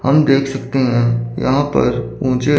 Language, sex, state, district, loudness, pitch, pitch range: Hindi, male, Chandigarh, Chandigarh, -16 LUFS, 130 Hz, 120-135 Hz